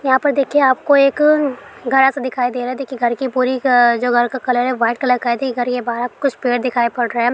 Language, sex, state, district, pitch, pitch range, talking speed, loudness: Hindi, female, Bihar, Araria, 255 Hz, 245-270 Hz, 260 wpm, -16 LUFS